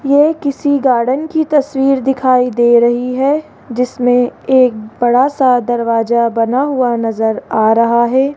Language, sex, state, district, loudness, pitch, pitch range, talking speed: Hindi, female, Rajasthan, Jaipur, -13 LUFS, 250 Hz, 235-275 Hz, 145 wpm